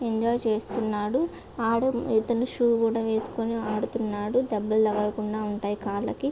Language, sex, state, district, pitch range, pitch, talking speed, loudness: Telugu, female, Andhra Pradesh, Visakhapatnam, 215-235 Hz, 225 Hz, 115 wpm, -27 LUFS